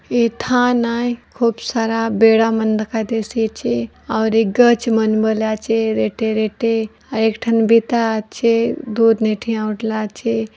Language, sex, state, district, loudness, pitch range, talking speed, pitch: Halbi, female, Chhattisgarh, Bastar, -17 LUFS, 220-230 Hz, 145 wpm, 225 Hz